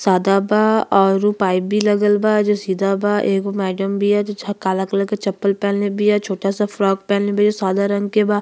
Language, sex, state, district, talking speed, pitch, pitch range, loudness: Bhojpuri, female, Uttar Pradesh, Gorakhpur, 220 wpm, 200 Hz, 195-210 Hz, -18 LUFS